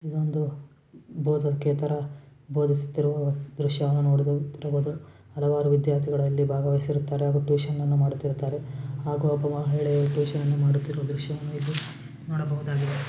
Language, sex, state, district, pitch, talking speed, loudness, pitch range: Kannada, female, Karnataka, Shimoga, 145 Hz, 95 wpm, -26 LUFS, 140-150 Hz